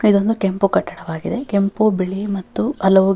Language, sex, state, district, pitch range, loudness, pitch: Kannada, female, Karnataka, Dharwad, 190-205 Hz, -19 LUFS, 195 Hz